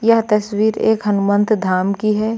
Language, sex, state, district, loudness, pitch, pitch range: Hindi, female, Uttar Pradesh, Lucknow, -16 LUFS, 210 Hz, 205-220 Hz